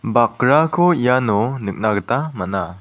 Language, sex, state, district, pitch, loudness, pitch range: Garo, male, Meghalaya, South Garo Hills, 115 Hz, -18 LUFS, 100-145 Hz